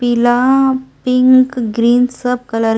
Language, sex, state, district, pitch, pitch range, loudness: Hindi, female, Delhi, New Delhi, 250 Hz, 240-255 Hz, -13 LUFS